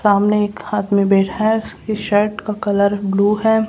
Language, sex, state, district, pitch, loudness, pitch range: Hindi, female, Rajasthan, Jaipur, 205 Hz, -17 LUFS, 200-215 Hz